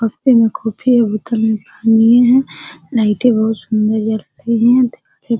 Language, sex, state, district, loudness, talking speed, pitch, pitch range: Hindi, female, Bihar, Araria, -14 LUFS, 175 wpm, 225 Hz, 220-240 Hz